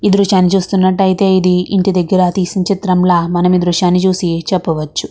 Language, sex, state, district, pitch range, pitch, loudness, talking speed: Telugu, female, Andhra Pradesh, Krishna, 180-190 Hz, 185 Hz, -13 LUFS, 175 wpm